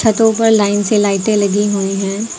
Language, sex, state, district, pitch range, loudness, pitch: Hindi, female, Uttar Pradesh, Lucknow, 200-220 Hz, -14 LUFS, 205 Hz